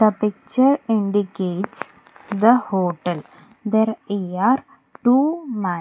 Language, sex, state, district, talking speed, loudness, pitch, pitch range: English, female, Punjab, Pathankot, 95 wpm, -20 LUFS, 215 Hz, 195-245 Hz